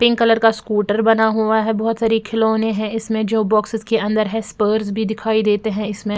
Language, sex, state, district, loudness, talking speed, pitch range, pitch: Hindi, female, Bihar, Patna, -18 LUFS, 235 wpm, 215-225 Hz, 220 Hz